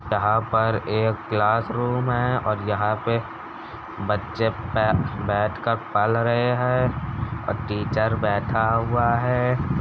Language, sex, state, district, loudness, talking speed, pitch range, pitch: Hindi, male, Uttar Pradesh, Jalaun, -23 LUFS, 115 wpm, 105-120 Hz, 110 Hz